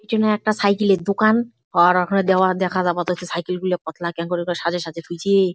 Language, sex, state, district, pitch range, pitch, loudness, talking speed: Bengali, female, West Bengal, Jalpaiguri, 175-200 Hz, 180 Hz, -20 LUFS, 215 wpm